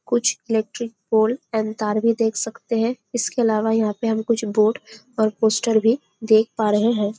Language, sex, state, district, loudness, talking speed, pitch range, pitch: Hindi, female, Chhattisgarh, Bastar, -21 LUFS, 190 wpm, 215-230 Hz, 220 Hz